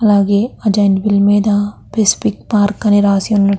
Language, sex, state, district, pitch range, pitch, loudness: Telugu, female, Andhra Pradesh, Krishna, 200-210 Hz, 205 Hz, -13 LUFS